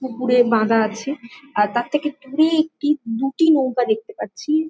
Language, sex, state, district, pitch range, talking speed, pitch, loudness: Bengali, female, West Bengal, Jhargram, 235-300 Hz, 180 wpm, 265 Hz, -20 LUFS